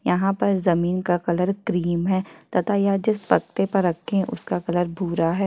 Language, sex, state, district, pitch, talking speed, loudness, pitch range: Hindi, female, Chhattisgarh, Kabirdham, 185 Hz, 185 wpm, -23 LUFS, 175-195 Hz